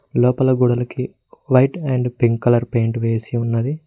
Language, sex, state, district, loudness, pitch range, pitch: Telugu, male, Telangana, Mahabubabad, -18 LUFS, 115-130 Hz, 125 Hz